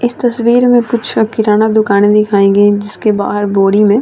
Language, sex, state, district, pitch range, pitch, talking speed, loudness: Hindi, female, Bihar, Vaishali, 205-235 Hz, 210 Hz, 195 wpm, -11 LUFS